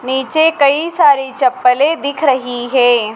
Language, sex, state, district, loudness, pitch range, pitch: Hindi, female, Madhya Pradesh, Dhar, -13 LUFS, 250-285 Hz, 265 Hz